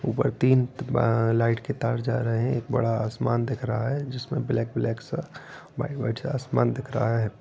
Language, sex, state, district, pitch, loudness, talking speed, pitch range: Hindi, male, Bihar, Gopalganj, 120 Hz, -26 LUFS, 225 wpm, 115-130 Hz